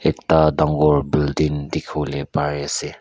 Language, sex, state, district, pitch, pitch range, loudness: Nagamese, male, Nagaland, Kohima, 75 Hz, 70-75 Hz, -19 LUFS